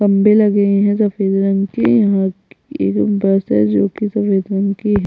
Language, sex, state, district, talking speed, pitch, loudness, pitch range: Hindi, female, Chhattisgarh, Bastar, 190 wpm, 200 Hz, -15 LUFS, 195-205 Hz